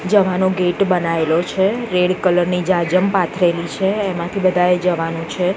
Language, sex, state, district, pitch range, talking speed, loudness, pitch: Gujarati, female, Gujarat, Gandhinagar, 175-190 Hz, 150 wpm, -17 LUFS, 180 Hz